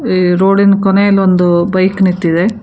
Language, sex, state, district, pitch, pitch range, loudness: Kannada, female, Karnataka, Bangalore, 190 Hz, 180-195 Hz, -11 LUFS